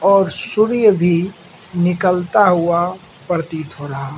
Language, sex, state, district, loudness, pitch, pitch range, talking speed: Hindi, male, Mizoram, Aizawl, -16 LUFS, 175 Hz, 170-195 Hz, 130 wpm